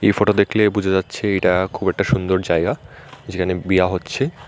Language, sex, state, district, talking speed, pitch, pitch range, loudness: Bengali, male, Tripura, Unakoti, 175 wpm, 95 Hz, 90-105 Hz, -19 LUFS